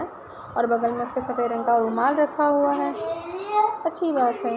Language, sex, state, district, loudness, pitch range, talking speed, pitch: Hindi, female, Uttar Pradesh, Ghazipur, -23 LUFS, 235-330 Hz, 185 wpm, 265 Hz